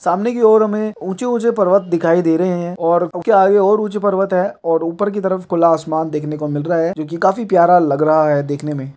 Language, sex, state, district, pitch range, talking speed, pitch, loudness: Hindi, male, Bihar, Darbhanga, 160-200 Hz, 255 wpm, 175 Hz, -16 LUFS